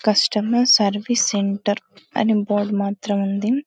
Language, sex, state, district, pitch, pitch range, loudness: Telugu, female, Telangana, Karimnagar, 205 Hz, 205-220 Hz, -19 LUFS